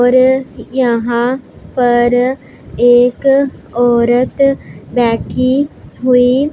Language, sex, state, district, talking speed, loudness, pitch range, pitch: Hindi, female, Punjab, Pathankot, 65 wpm, -13 LUFS, 245-265 Hz, 250 Hz